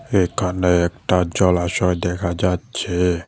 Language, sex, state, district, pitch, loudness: Bengali, male, Tripura, West Tripura, 90 Hz, -19 LUFS